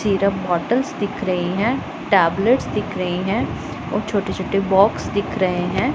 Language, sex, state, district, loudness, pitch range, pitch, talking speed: Hindi, female, Punjab, Pathankot, -20 LUFS, 185-210 Hz, 195 Hz, 150 wpm